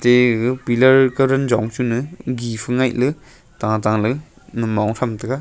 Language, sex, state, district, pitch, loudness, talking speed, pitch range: Wancho, male, Arunachal Pradesh, Longding, 125 Hz, -18 LUFS, 155 wpm, 115-130 Hz